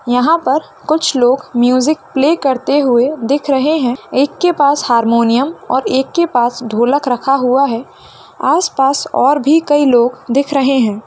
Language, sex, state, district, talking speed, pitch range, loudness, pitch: Hindi, female, Bihar, Purnia, 185 wpm, 245-290 Hz, -13 LUFS, 270 Hz